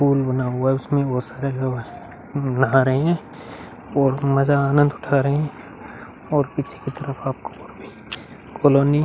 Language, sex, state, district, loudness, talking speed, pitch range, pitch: Hindi, male, Uttar Pradesh, Muzaffarnagar, -21 LUFS, 160 wpm, 130-145 Hz, 140 Hz